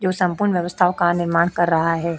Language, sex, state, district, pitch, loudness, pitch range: Hindi, female, Uttar Pradesh, Etah, 175 Hz, -19 LUFS, 170-180 Hz